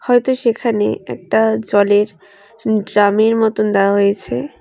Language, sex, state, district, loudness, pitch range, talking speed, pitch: Bengali, female, West Bengal, Alipurduar, -15 LUFS, 200-225 Hz, 105 wpm, 210 Hz